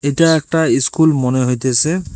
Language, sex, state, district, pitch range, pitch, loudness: Bengali, male, West Bengal, Cooch Behar, 130-160 Hz, 155 Hz, -14 LUFS